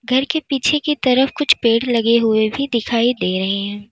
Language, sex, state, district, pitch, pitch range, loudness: Hindi, female, Uttar Pradesh, Lalitpur, 235 Hz, 220-275 Hz, -17 LUFS